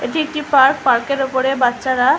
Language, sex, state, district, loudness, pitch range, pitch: Bengali, female, West Bengal, Malda, -16 LUFS, 255-280 Hz, 265 Hz